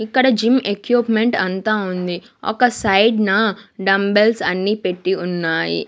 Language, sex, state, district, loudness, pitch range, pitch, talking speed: Telugu, female, Andhra Pradesh, Sri Satya Sai, -17 LUFS, 185-225 Hz, 205 Hz, 120 wpm